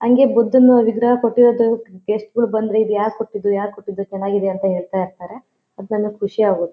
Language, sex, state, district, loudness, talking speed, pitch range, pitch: Kannada, female, Karnataka, Shimoga, -17 LUFS, 170 wpm, 200-230 Hz, 210 Hz